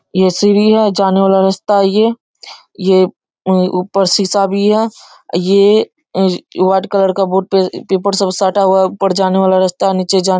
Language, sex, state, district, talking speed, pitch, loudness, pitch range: Hindi, male, Bihar, Darbhanga, 165 wpm, 190 Hz, -13 LUFS, 185-200 Hz